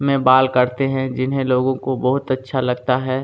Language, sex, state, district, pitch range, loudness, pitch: Hindi, male, Chhattisgarh, Kabirdham, 130-135 Hz, -18 LUFS, 130 Hz